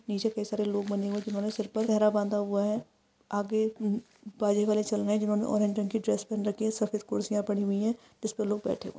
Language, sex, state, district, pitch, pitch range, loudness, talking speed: Hindi, female, Maharashtra, Pune, 210 Hz, 205-215 Hz, -30 LUFS, 215 wpm